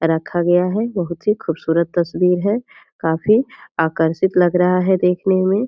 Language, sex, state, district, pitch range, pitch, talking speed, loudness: Hindi, female, Bihar, Purnia, 165-190 Hz, 180 Hz, 170 wpm, -18 LUFS